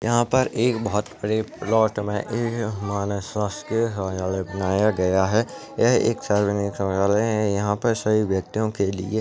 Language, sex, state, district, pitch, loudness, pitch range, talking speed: Hindi, male, Maharashtra, Solapur, 105 Hz, -23 LUFS, 100-110 Hz, 155 wpm